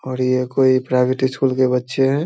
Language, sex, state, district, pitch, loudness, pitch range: Hindi, male, Bihar, Samastipur, 130 Hz, -18 LUFS, 130-135 Hz